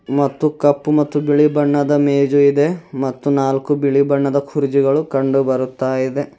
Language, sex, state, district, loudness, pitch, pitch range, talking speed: Kannada, male, Karnataka, Bidar, -16 LUFS, 140 Hz, 135-145 Hz, 140 wpm